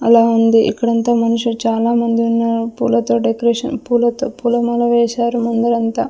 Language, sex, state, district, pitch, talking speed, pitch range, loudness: Telugu, female, Andhra Pradesh, Sri Satya Sai, 235 Hz, 120 wpm, 230-235 Hz, -15 LUFS